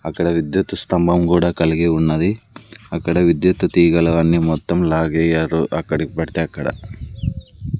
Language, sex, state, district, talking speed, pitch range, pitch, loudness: Telugu, male, Andhra Pradesh, Sri Satya Sai, 115 wpm, 80-85 Hz, 85 Hz, -18 LUFS